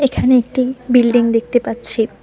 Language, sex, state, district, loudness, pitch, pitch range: Bengali, female, West Bengal, Cooch Behar, -15 LUFS, 245 Hz, 230-255 Hz